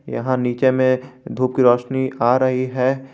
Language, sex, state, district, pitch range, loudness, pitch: Hindi, male, Jharkhand, Garhwa, 125-130 Hz, -18 LUFS, 130 Hz